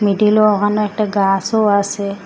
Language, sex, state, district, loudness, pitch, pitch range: Bengali, female, Assam, Hailakandi, -15 LUFS, 205 Hz, 200-210 Hz